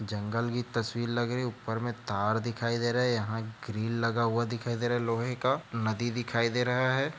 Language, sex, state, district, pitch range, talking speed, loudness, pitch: Hindi, male, Chhattisgarh, Raigarh, 115-120 Hz, 235 wpm, -30 LUFS, 120 Hz